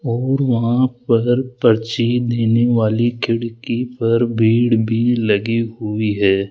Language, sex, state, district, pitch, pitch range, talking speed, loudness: Hindi, male, Rajasthan, Jaipur, 115 Hz, 115-120 Hz, 120 wpm, -17 LUFS